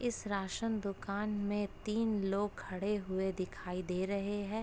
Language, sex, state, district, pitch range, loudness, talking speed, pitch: Hindi, female, Uttar Pradesh, Etah, 190-210 Hz, -37 LUFS, 155 wpm, 200 Hz